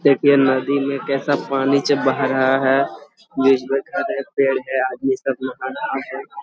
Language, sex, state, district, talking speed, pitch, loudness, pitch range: Hindi, male, Jharkhand, Sahebganj, 185 wpm, 135 Hz, -19 LUFS, 130-140 Hz